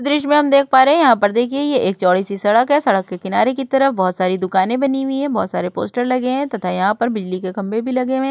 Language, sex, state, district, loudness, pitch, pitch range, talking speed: Hindi, female, Uttar Pradesh, Budaun, -17 LUFS, 245 Hz, 195-270 Hz, 305 wpm